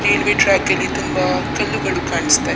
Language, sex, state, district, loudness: Kannada, female, Karnataka, Dakshina Kannada, -17 LUFS